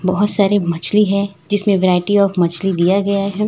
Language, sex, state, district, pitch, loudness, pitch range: Hindi, female, Chhattisgarh, Raipur, 195 Hz, -15 LUFS, 185-205 Hz